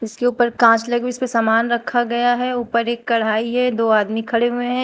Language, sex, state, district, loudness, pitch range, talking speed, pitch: Hindi, female, Uttar Pradesh, Shamli, -18 LUFS, 230-245 Hz, 245 wpm, 235 Hz